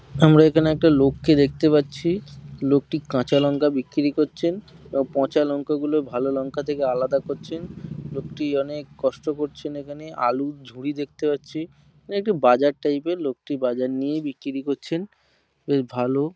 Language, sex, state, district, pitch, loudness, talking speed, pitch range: Bengali, male, West Bengal, Kolkata, 145 Hz, -22 LUFS, 145 wpm, 135-155 Hz